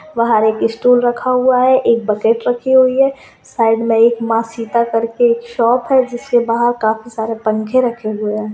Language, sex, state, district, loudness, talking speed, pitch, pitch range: Hindi, female, Rajasthan, Churu, -14 LUFS, 190 wpm, 235 Hz, 225-245 Hz